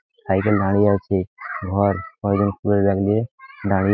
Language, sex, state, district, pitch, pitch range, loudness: Bengali, male, West Bengal, Paschim Medinipur, 100 Hz, 100-105 Hz, -21 LUFS